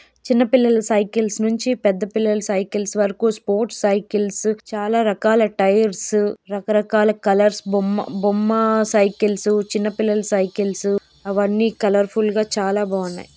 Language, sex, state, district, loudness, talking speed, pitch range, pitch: Telugu, female, Andhra Pradesh, Srikakulam, -19 LUFS, 110 wpm, 200-220 Hz, 210 Hz